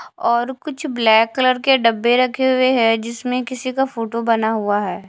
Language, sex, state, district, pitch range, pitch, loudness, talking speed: Hindi, female, Delhi, New Delhi, 230-260 Hz, 245 Hz, -17 LUFS, 190 wpm